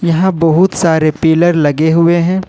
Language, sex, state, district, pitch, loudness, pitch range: Hindi, male, Jharkhand, Ranchi, 170 Hz, -11 LUFS, 160-180 Hz